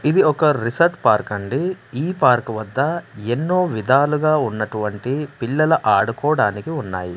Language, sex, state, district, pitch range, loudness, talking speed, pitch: Telugu, male, Andhra Pradesh, Manyam, 110-155 Hz, -19 LUFS, 115 wpm, 135 Hz